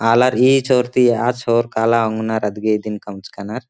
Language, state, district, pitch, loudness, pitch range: Kurukh, Chhattisgarh, Jashpur, 115 Hz, -17 LUFS, 110-125 Hz